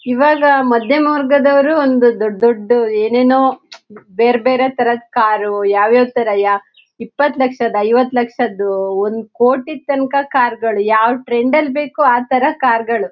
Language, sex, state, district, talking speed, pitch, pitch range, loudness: Kannada, female, Karnataka, Shimoga, 130 wpm, 245 Hz, 220-270 Hz, -14 LUFS